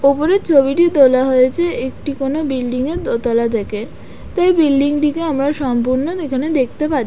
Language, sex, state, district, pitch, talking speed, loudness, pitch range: Bengali, female, West Bengal, Dakshin Dinajpur, 275 Hz, 155 wpm, -16 LUFS, 255-310 Hz